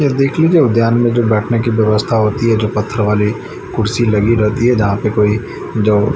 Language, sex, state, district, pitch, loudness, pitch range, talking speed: Hindi, male, Chandigarh, Chandigarh, 110 Hz, -14 LUFS, 105-120 Hz, 215 wpm